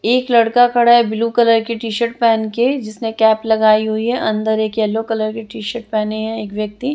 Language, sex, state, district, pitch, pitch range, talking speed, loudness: Hindi, female, Chandigarh, Chandigarh, 225 Hz, 220-235 Hz, 225 wpm, -16 LUFS